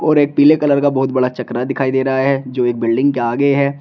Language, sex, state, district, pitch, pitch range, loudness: Hindi, male, Uttar Pradesh, Shamli, 135 Hz, 130-140 Hz, -15 LUFS